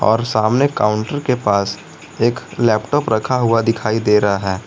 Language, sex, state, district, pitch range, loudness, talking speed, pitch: Hindi, male, Jharkhand, Garhwa, 105-125 Hz, -17 LUFS, 165 wpm, 115 Hz